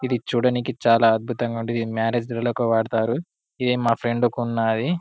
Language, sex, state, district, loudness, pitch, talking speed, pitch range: Telugu, male, Telangana, Karimnagar, -22 LUFS, 120 Hz, 155 wpm, 115-125 Hz